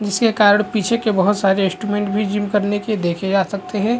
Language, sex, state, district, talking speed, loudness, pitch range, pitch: Hindi, male, Chhattisgarh, Korba, 225 wpm, -18 LUFS, 195-210 Hz, 205 Hz